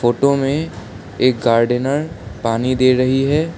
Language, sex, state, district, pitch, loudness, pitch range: Hindi, male, Assam, Sonitpur, 130 Hz, -17 LUFS, 120-140 Hz